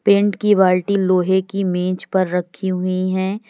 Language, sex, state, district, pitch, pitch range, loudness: Hindi, female, Uttar Pradesh, Lalitpur, 185 Hz, 185-200 Hz, -18 LUFS